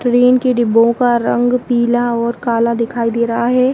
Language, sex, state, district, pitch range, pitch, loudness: Hindi, female, Uttar Pradesh, Hamirpur, 235-245 Hz, 240 Hz, -14 LUFS